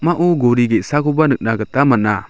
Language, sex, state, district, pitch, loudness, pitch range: Garo, male, Meghalaya, South Garo Hills, 120 Hz, -15 LUFS, 110-150 Hz